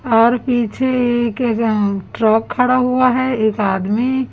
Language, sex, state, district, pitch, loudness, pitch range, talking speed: Hindi, female, Chhattisgarh, Raipur, 240 Hz, -16 LUFS, 220-255 Hz, 140 wpm